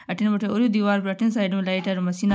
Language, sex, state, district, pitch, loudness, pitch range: Marwari, female, Rajasthan, Nagaur, 200 Hz, -23 LUFS, 190-210 Hz